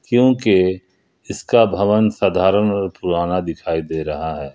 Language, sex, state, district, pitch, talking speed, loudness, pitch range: Hindi, male, Jharkhand, Ranchi, 95 Hz, 130 wpm, -17 LUFS, 85-105 Hz